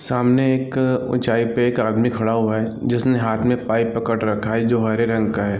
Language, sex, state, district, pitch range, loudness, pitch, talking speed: Hindi, male, Chhattisgarh, Bilaspur, 110-125 Hz, -19 LUFS, 115 Hz, 225 wpm